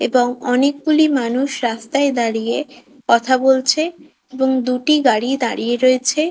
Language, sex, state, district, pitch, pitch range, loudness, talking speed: Bengali, female, West Bengal, Kolkata, 260 Hz, 245-285 Hz, -17 LUFS, 115 wpm